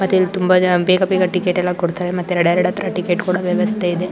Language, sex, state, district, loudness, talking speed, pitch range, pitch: Kannada, female, Karnataka, Shimoga, -17 LUFS, 220 wpm, 180-185 Hz, 180 Hz